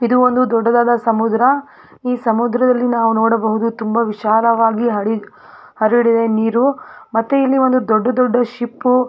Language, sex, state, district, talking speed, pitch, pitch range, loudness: Kannada, female, Karnataka, Belgaum, 130 wpm, 235 Hz, 225-250 Hz, -15 LUFS